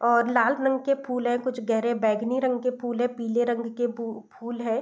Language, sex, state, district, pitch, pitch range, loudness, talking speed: Hindi, female, Bihar, East Champaran, 240 Hz, 230-250 Hz, -26 LUFS, 235 wpm